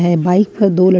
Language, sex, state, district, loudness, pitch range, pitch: Hindi, female, Jharkhand, Ranchi, -13 LUFS, 175-200 Hz, 185 Hz